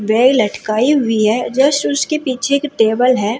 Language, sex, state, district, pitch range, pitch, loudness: Hindi, female, Bihar, Katihar, 215-270 Hz, 245 Hz, -15 LUFS